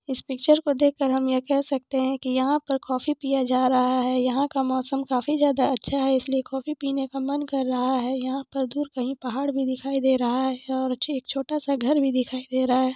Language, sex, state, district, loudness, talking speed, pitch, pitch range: Hindi, female, Jharkhand, Jamtara, -24 LUFS, 240 wpm, 265 Hz, 255-275 Hz